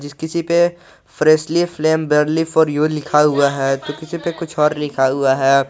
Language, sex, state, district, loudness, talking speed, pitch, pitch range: Hindi, male, Jharkhand, Garhwa, -17 LUFS, 190 wpm, 150 Hz, 145-160 Hz